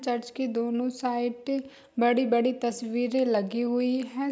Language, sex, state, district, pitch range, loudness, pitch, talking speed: Hindi, female, Bihar, Saharsa, 240-255 Hz, -28 LUFS, 245 Hz, 125 wpm